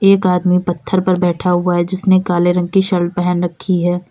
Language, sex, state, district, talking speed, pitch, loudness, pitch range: Hindi, female, Uttar Pradesh, Lalitpur, 220 wpm, 180 Hz, -15 LUFS, 175-185 Hz